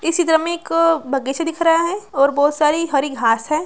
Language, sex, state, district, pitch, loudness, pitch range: Hindi, female, Bihar, Gaya, 315 Hz, -17 LUFS, 280-330 Hz